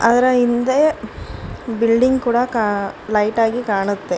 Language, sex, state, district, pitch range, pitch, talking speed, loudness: Kannada, female, Karnataka, Bangalore, 210-245 Hz, 230 Hz, 115 wpm, -17 LUFS